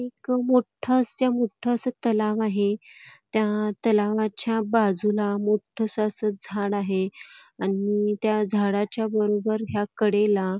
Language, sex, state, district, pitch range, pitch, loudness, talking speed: Marathi, female, Karnataka, Belgaum, 205-230 Hz, 215 Hz, -24 LUFS, 105 wpm